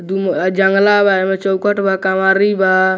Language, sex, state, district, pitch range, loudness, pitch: Bhojpuri, male, Bihar, Muzaffarpur, 190-195 Hz, -14 LUFS, 190 Hz